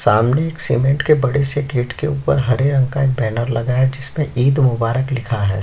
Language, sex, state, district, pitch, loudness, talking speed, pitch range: Hindi, male, Chhattisgarh, Sukma, 130 Hz, -17 LUFS, 225 wpm, 120-140 Hz